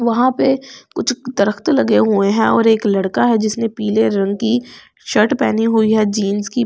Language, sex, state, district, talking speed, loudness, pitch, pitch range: Hindi, female, Delhi, New Delhi, 200 wpm, -16 LUFS, 220 Hz, 205-235 Hz